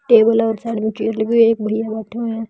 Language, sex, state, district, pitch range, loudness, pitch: Hindi, female, Bihar, Patna, 220-230 Hz, -17 LUFS, 225 Hz